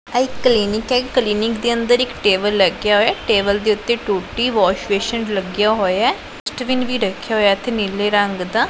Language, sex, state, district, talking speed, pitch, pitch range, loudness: Punjabi, female, Punjab, Pathankot, 205 wpm, 215 Hz, 200-235 Hz, -17 LUFS